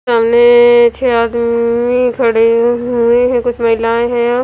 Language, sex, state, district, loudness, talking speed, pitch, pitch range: Hindi, female, Punjab, Fazilka, -11 LUFS, 135 wpm, 240 Hz, 235-240 Hz